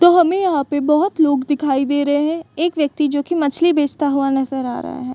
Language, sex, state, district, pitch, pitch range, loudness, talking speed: Hindi, female, Bihar, Saran, 290 Hz, 280-325 Hz, -17 LUFS, 245 wpm